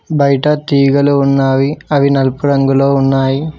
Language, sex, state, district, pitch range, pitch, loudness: Telugu, male, Telangana, Mahabubabad, 135-145 Hz, 140 Hz, -12 LUFS